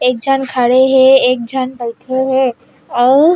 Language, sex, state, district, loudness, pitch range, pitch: Chhattisgarhi, female, Chhattisgarh, Raigarh, -12 LUFS, 250-265 Hz, 260 Hz